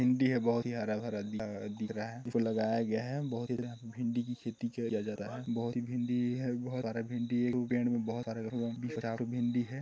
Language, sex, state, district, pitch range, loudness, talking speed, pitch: Hindi, male, Chhattisgarh, Sarguja, 115-120 Hz, -35 LUFS, 220 wpm, 120 Hz